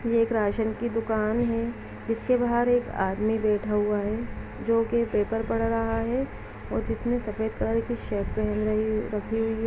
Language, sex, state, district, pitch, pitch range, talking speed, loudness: Hindi, female, Chhattisgarh, Balrampur, 225 Hz, 215-230 Hz, 180 wpm, -27 LUFS